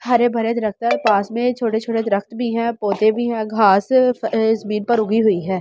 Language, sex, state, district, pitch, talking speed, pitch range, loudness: Hindi, male, Delhi, New Delhi, 225 Hz, 150 wpm, 210-235 Hz, -18 LUFS